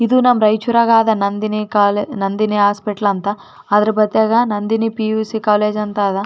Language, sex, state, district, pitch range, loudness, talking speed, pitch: Kannada, female, Karnataka, Raichur, 205-220 Hz, -16 LUFS, 165 wpm, 215 Hz